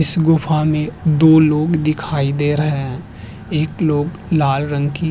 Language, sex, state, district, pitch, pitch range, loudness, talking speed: Hindi, male, Uttar Pradesh, Hamirpur, 150 Hz, 145-160 Hz, -16 LUFS, 175 wpm